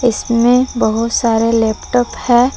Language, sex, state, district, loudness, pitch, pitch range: Hindi, female, Jharkhand, Palamu, -14 LUFS, 235 Hz, 230-245 Hz